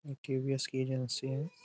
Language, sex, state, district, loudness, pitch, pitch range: Hindi, male, Uttar Pradesh, Ghazipur, -35 LUFS, 135 Hz, 130-140 Hz